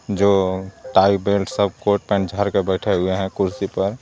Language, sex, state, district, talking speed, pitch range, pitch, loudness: Hindi, male, Jharkhand, Garhwa, 195 wpm, 95-100 Hz, 100 Hz, -20 LUFS